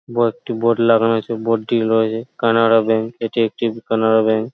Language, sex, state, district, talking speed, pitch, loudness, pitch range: Bengali, male, West Bengal, Paschim Medinipur, 185 wpm, 115 Hz, -17 LUFS, 110-115 Hz